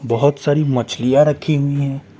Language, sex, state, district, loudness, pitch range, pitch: Hindi, male, Bihar, Patna, -17 LUFS, 125-145 Hz, 140 Hz